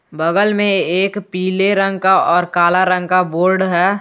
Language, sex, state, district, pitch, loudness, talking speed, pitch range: Hindi, male, Jharkhand, Garhwa, 185 Hz, -14 LUFS, 180 wpm, 175-195 Hz